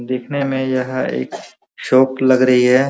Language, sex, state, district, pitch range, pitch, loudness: Hindi, male, Uttar Pradesh, Muzaffarnagar, 125-130 Hz, 130 Hz, -16 LUFS